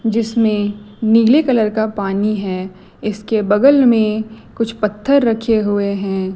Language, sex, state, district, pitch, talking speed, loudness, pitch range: Hindi, female, Chhattisgarh, Raipur, 215 Hz, 130 wpm, -16 LUFS, 205-230 Hz